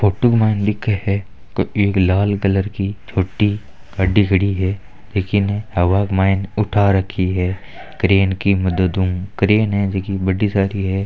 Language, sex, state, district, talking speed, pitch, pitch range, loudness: Marwari, male, Rajasthan, Nagaur, 170 wpm, 100 Hz, 95-105 Hz, -18 LUFS